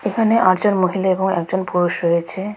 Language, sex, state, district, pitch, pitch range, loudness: Bengali, female, West Bengal, Alipurduar, 190 Hz, 180-205 Hz, -18 LUFS